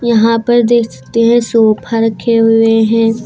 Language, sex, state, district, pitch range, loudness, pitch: Hindi, female, Uttar Pradesh, Lucknow, 225-235 Hz, -11 LUFS, 230 Hz